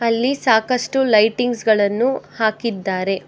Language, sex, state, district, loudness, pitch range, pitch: Kannada, female, Karnataka, Bangalore, -18 LUFS, 215-245 Hz, 230 Hz